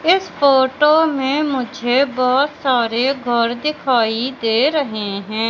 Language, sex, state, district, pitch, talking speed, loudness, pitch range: Hindi, male, Madhya Pradesh, Katni, 260 Hz, 120 wpm, -17 LUFS, 235-285 Hz